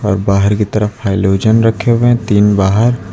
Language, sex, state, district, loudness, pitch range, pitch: Hindi, male, Uttar Pradesh, Lucknow, -12 LUFS, 100-115 Hz, 105 Hz